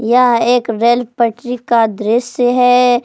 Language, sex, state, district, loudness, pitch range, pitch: Hindi, female, Jharkhand, Palamu, -13 LUFS, 230-245 Hz, 240 Hz